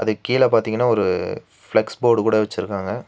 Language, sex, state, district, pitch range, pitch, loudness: Tamil, male, Tamil Nadu, Nilgiris, 110-120 Hz, 110 Hz, -19 LUFS